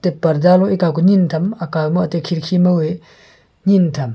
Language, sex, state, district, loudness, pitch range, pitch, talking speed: Wancho, male, Arunachal Pradesh, Longding, -15 LUFS, 160-180 Hz, 175 Hz, 175 wpm